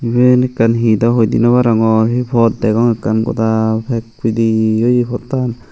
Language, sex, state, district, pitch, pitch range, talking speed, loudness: Chakma, male, Tripura, Unakoti, 115 Hz, 110-120 Hz, 180 wpm, -14 LUFS